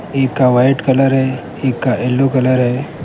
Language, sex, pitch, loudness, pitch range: Urdu, male, 130 Hz, -14 LUFS, 125-135 Hz